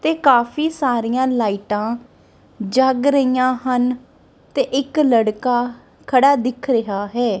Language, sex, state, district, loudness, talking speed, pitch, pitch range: Punjabi, female, Punjab, Kapurthala, -18 LUFS, 115 wpm, 250 Hz, 235-270 Hz